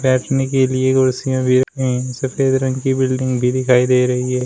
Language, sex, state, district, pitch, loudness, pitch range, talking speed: Hindi, male, Uttar Pradesh, Shamli, 130 Hz, -17 LUFS, 125-130 Hz, 175 wpm